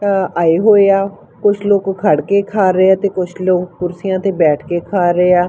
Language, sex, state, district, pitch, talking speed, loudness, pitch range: Punjabi, female, Punjab, Fazilka, 190 Hz, 220 wpm, -14 LUFS, 180-200 Hz